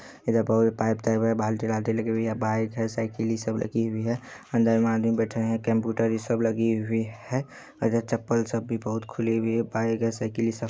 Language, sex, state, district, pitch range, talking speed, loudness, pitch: Hindi, male, Bihar, Supaul, 110-115 Hz, 215 wpm, -26 LUFS, 115 Hz